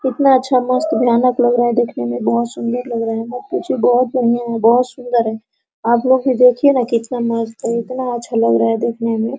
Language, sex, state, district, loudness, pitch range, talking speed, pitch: Hindi, female, Bihar, Araria, -16 LUFS, 230-250 Hz, 235 wpm, 240 Hz